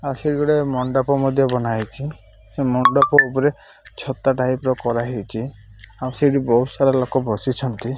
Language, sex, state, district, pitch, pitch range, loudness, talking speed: Odia, male, Odisha, Malkangiri, 130 Hz, 120-135 Hz, -19 LUFS, 150 wpm